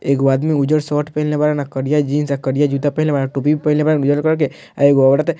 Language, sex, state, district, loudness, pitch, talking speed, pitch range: Bhojpuri, male, Bihar, Muzaffarpur, -16 LUFS, 145 Hz, 280 wpm, 140-150 Hz